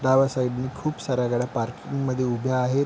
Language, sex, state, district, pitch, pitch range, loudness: Marathi, male, Maharashtra, Pune, 130 Hz, 125-135 Hz, -25 LUFS